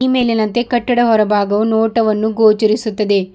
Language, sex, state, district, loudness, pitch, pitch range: Kannada, female, Karnataka, Bidar, -14 LUFS, 220 Hz, 215-235 Hz